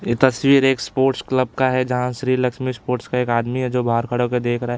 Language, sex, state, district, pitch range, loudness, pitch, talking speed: Hindi, male, Chhattisgarh, Bilaspur, 120-130 Hz, -19 LUFS, 125 Hz, 275 wpm